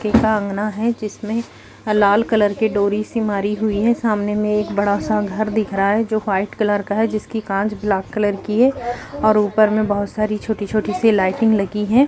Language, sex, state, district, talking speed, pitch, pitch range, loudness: Hindi, female, Uttar Pradesh, Jalaun, 215 wpm, 210 Hz, 205-220 Hz, -19 LUFS